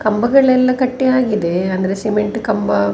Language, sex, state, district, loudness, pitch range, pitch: Kannada, female, Karnataka, Dakshina Kannada, -15 LUFS, 190-255 Hz, 215 Hz